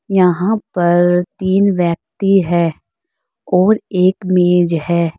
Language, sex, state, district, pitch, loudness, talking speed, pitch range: Hindi, female, Uttar Pradesh, Saharanpur, 180 Hz, -14 LUFS, 105 wpm, 175-195 Hz